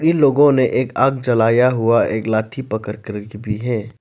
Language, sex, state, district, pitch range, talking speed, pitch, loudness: Hindi, male, Arunachal Pradesh, Lower Dibang Valley, 110-130 Hz, 180 wpm, 115 Hz, -17 LUFS